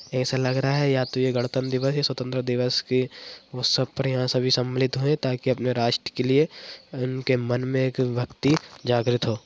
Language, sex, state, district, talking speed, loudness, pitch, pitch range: Hindi, female, Bihar, Madhepura, 185 wpm, -24 LUFS, 130 Hz, 125-130 Hz